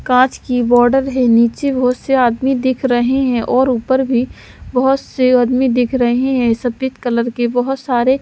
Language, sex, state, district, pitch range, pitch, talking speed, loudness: Hindi, female, Delhi, New Delhi, 245-260 Hz, 250 Hz, 180 wpm, -15 LUFS